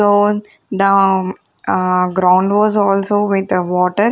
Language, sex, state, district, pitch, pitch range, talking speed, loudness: English, female, Punjab, Kapurthala, 195 Hz, 185-205 Hz, 130 wpm, -14 LUFS